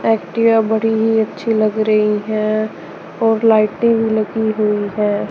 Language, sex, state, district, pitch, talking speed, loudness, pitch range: Hindi, male, Chandigarh, Chandigarh, 220 Hz, 145 wpm, -16 LUFS, 215-225 Hz